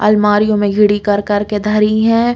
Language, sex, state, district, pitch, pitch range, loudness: Bundeli, female, Uttar Pradesh, Hamirpur, 210 Hz, 205-215 Hz, -13 LUFS